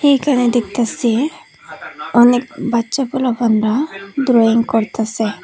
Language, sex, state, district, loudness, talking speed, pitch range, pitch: Bengali, female, Tripura, Unakoti, -16 LUFS, 75 wpm, 225-265 Hz, 240 Hz